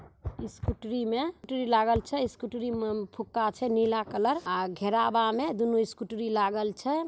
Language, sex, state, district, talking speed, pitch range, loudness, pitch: Maithili, female, Bihar, Samastipur, 150 wpm, 210-240 Hz, -29 LUFS, 225 Hz